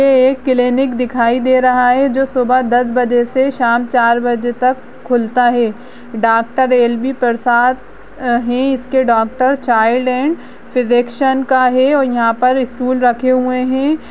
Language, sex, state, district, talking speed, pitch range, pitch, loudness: Hindi, female, Bihar, Jahanabad, 155 wpm, 240-260 Hz, 250 Hz, -14 LUFS